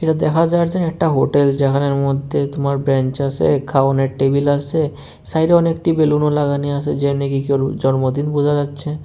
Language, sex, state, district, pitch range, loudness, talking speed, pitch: Bengali, male, Tripura, West Tripura, 140-150 Hz, -17 LUFS, 165 wpm, 140 Hz